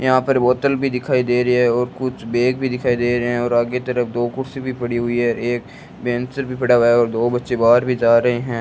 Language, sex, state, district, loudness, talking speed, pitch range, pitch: Hindi, female, Rajasthan, Bikaner, -18 LUFS, 270 wpm, 120-125 Hz, 125 Hz